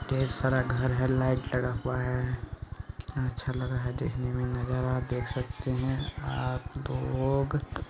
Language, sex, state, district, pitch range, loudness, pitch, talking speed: Hindi, male, Bihar, Araria, 125-130 Hz, -31 LUFS, 125 Hz, 150 wpm